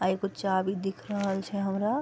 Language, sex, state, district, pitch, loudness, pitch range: Maithili, female, Bihar, Vaishali, 195 Hz, -30 LUFS, 190-200 Hz